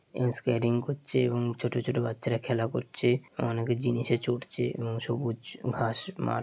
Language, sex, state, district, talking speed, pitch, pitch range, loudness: Bengali, male, West Bengal, Dakshin Dinajpur, 160 wpm, 120 Hz, 115-125 Hz, -30 LUFS